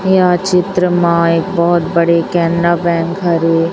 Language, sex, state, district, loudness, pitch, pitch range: Hindi, female, Chhattisgarh, Raipur, -13 LUFS, 170 Hz, 170-180 Hz